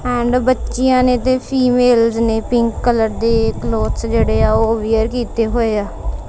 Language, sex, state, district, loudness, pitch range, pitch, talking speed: Punjabi, female, Punjab, Kapurthala, -16 LUFS, 220-250 Hz, 230 Hz, 160 wpm